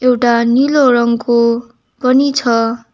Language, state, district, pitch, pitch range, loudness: Nepali, West Bengal, Darjeeling, 240 Hz, 235-255 Hz, -13 LUFS